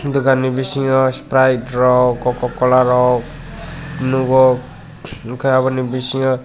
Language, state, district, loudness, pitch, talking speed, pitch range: Kokborok, Tripura, West Tripura, -15 LUFS, 130 Hz, 100 wpm, 125-135 Hz